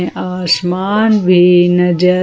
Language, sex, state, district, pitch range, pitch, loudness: Hindi, female, Jharkhand, Ranchi, 180-185 Hz, 180 Hz, -12 LUFS